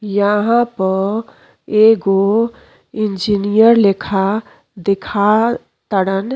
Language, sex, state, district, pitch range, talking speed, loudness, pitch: Bhojpuri, female, Uttar Pradesh, Deoria, 195-220 Hz, 65 wpm, -15 LUFS, 205 Hz